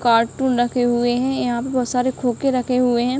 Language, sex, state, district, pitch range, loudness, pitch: Hindi, female, Uttar Pradesh, Ghazipur, 240-255 Hz, -19 LUFS, 250 Hz